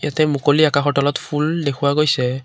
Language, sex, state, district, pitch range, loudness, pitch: Assamese, male, Assam, Kamrup Metropolitan, 140-150 Hz, -18 LUFS, 145 Hz